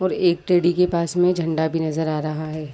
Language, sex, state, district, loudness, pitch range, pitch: Hindi, female, Chhattisgarh, Bilaspur, -21 LUFS, 155-175 Hz, 170 Hz